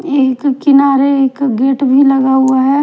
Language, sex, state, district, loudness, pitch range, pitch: Hindi, female, Punjab, Kapurthala, -11 LUFS, 265-280 Hz, 270 Hz